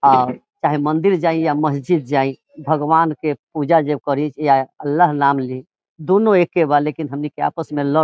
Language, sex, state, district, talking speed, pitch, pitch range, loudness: Bhojpuri, male, Bihar, Saran, 185 wpm, 150 Hz, 140-160 Hz, -18 LUFS